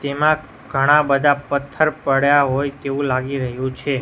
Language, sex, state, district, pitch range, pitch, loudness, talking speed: Gujarati, male, Gujarat, Gandhinagar, 135-145 Hz, 140 Hz, -18 LUFS, 150 wpm